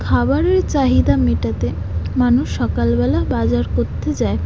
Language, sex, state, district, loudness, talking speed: Bengali, female, West Bengal, Jhargram, -17 LUFS, 120 wpm